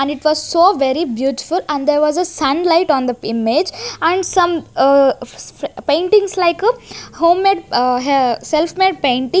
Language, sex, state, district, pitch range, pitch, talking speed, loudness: English, female, Chandigarh, Chandigarh, 275-355 Hz, 310 Hz, 170 wpm, -15 LUFS